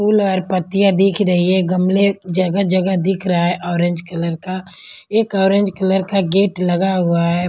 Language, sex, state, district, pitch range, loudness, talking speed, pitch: Hindi, female, Maharashtra, Mumbai Suburban, 175-195 Hz, -16 LUFS, 175 wpm, 185 Hz